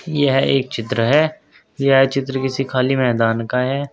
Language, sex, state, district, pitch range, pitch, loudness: Hindi, male, Uttar Pradesh, Saharanpur, 125-135 Hz, 135 Hz, -18 LUFS